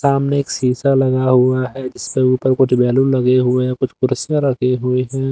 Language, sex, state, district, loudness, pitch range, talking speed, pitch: Hindi, male, Haryana, Jhajjar, -16 LUFS, 125-135 Hz, 205 wpm, 130 Hz